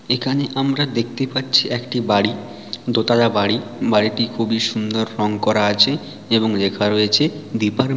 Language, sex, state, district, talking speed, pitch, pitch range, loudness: Bengali, male, West Bengal, Paschim Medinipur, 145 wpm, 115 Hz, 105-125 Hz, -18 LUFS